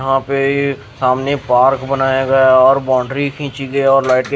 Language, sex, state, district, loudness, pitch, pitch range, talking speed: Hindi, male, Haryana, Jhajjar, -14 LUFS, 135 Hz, 130-140 Hz, 180 wpm